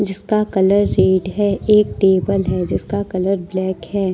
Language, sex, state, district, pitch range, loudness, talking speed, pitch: Hindi, female, Jharkhand, Deoghar, 185-205 Hz, -17 LUFS, 160 wpm, 195 Hz